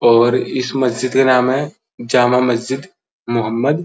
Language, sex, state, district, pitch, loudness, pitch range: Hindi, male, Uttar Pradesh, Muzaffarnagar, 125 Hz, -16 LUFS, 120-135 Hz